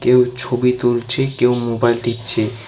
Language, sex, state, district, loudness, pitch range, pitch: Bengali, male, West Bengal, Alipurduar, -17 LUFS, 120-125 Hz, 120 Hz